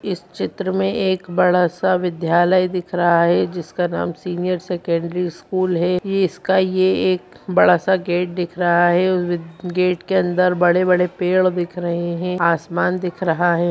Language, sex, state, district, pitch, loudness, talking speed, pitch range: Hindi, female, Bihar, Jahanabad, 180 Hz, -19 LUFS, 160 wpm, 175-185 Hz